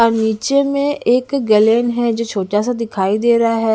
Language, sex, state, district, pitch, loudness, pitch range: Hindi, female, Haryana, Jhajjar, 230 Hz, -16 LUFS, 220-245 Hz